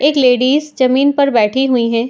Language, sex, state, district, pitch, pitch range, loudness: Hindi, female, Uttar Pradesh, Muzaffarnagar, 260 Hz, 245-280 Hz, -13 LUFS